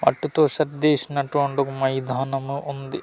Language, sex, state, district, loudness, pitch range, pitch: Telugu, male, Andhra Pradesh, Manyam, -23 LUFS, 135-145 Hz, 140 Hz